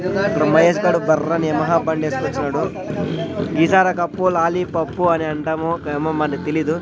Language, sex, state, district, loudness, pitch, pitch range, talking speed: Telugu, male, Andhra Pradesh, Sri Satya Sai, -19 LUFS, 165 Hz, 155-175 Hz, 130 wpm